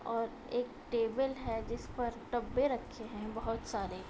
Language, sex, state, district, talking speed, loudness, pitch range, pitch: Hindi, female, Uttar Pradesh, Budaun, 175 wpm, -37 LUFS, 225-245 Hz, 235 Hz